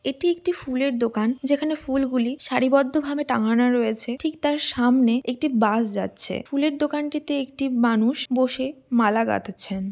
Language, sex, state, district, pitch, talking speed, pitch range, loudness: Bengali, female, West Bengal, Dakshin Dinajpur, 255 Hz, 140 wpm, 235-290 Hz, -23 LUFS